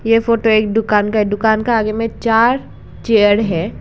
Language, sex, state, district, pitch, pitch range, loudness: Hindi, female, Arunachal Pradesh, Lower Dibang Valley, 220 Hz, 210-230 Hz, -15 LUFS